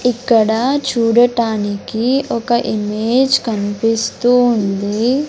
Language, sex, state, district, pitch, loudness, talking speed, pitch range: Telugu, male, Andhra Pradesh, Sri Satya Sai, 230 Hz, -15 LUFS, 70 wpm, 220-245 Hz